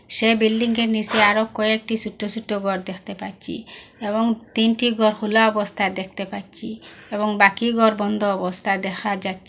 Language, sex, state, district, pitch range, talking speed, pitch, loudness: Bengali, female, Assam, Hailakandi, 200-225 Hz, 150 wpm, 215 Hz, -20 LUFS